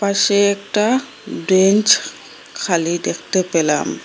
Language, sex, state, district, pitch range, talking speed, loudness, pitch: Bengali, female, Assam, Hailakandi, 175-210 Hz, 90 wpm, -16 LUFS, 200 Hz